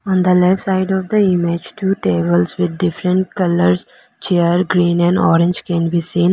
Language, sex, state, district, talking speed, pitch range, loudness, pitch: English, female, Arunachal Pradesh, Lower Dibang Valley, 180 wpm, 170-185 Hz, -16 LUFS, 180 Hz